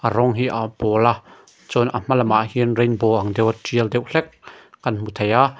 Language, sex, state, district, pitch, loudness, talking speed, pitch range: Mizo, male, Mizoram, Aizawl, 120 Hz, -20 LUFS, 205 wpm, 110-125 Hz